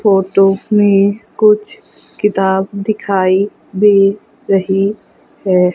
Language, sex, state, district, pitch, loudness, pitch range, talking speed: Hindi, female, Madhya Pradesh, Umaria, 200 Hz, -13 LUFS, 195-210 Hz, 85 wpm